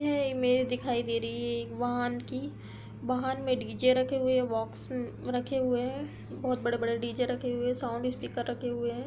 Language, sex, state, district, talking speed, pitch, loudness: Hindi, female, Uttar Pradesh, Hamirpur, 205 wpm, 245 Hz, -31 LUFS